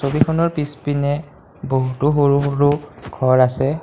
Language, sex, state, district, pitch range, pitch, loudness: Assamese, male, Assam, Kamrup Metropolitan, 135-145 Hz, 140 Hz, -18 LUFS